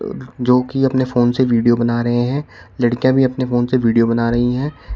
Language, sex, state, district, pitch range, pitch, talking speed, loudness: Hindi, male, Uttar Pradesh, Shamli, 120-130 Hz, 125 Hz, 220 wpm, -16 LUFS